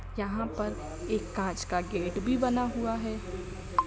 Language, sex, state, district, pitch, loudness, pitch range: Hindi, female, Bihar, Saran, 225 Hz, -32 LUFS, 200-245 Hz